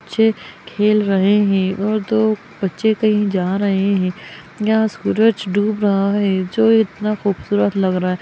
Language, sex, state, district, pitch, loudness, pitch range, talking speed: Magahi, female, Bihar, Gaya, 205 Hz, -17 LUFS, 190-215 Hz, 160 wpm